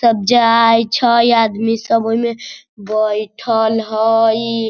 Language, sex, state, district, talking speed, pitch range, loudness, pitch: Hindi, female, Bihar, Sitamarhi, 130 wpm, 220-230 Hz, -14 LUFS, 225 Hz